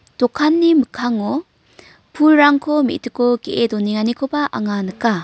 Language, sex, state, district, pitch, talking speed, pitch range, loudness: Garo, female, Meghalaya, North Garo Hills, 245 Hz, 90 wpm, 225-295 Hz, -17 LUFS